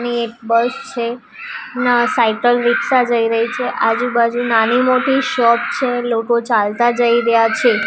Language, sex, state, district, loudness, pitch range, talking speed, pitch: Gujarati, female, Gujarat, Gandhinagar, -15 LUFS, 230-245 Hz, 135 wpm, 240 Hz